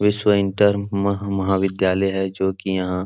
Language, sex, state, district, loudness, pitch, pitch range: Hindi, male, Bihar, Supaul, -20 LUFS, 95 Hz, 95-100 Hz